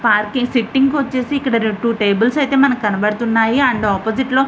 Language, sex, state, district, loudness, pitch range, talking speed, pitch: Telugu, female, Andhra Pradesh, Visakhapatnam, -16 LUFS, 220-265 Hz, 175 wpm, 235 Hz